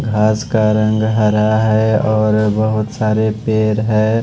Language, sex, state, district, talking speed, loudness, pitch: Hindi, male, Odisha, Malkangiri, 140 wpm, -15 LUFS, 110 Hz